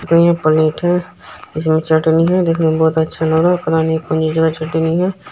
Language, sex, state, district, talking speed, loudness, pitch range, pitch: Maithili, male, Bihar, Supaul, 160 wpm, -15 LUFS, 160-170 Hz, 160 Hz